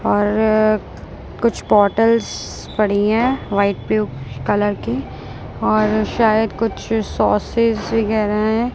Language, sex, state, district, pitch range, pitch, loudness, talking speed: Hindi, male, Punjab, Kapurthala, 205-225 Hz, 215 Hz, -18 LUFS, 105 wpm